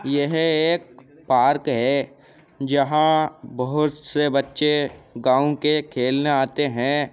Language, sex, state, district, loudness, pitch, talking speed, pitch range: Hindi, male, Uttar Pradesh, Jyotiba Phule Nagar, -21 LUFS, 145 Hz, 110 wpm, 135-150 Hz